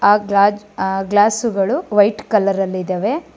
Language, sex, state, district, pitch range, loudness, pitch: Kannada, female, Karnataka, Bangalore, 195-210 Hz, -16 LUFS, 205 Hz